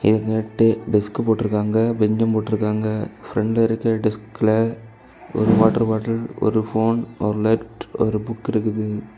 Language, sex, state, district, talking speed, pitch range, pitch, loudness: Tamil, male, Tamil Nadu, Kanyakumari, 125 wpm, 110-115 Hz, 110 Hz, -20 LUFS